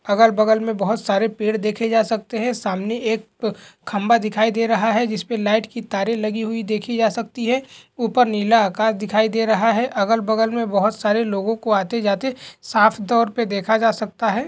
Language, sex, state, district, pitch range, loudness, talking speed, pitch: Hindi, male, Bihar, Jamui, 215-230 Hz, -20 LUFS, 190 wpm, 220 Hz